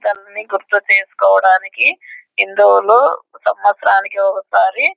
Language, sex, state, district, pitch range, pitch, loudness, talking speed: Telugu, female, Andhra Pradesh, Anantapur, 190-205 Hz, 195 Hz, -13 LUFS, 85 wpm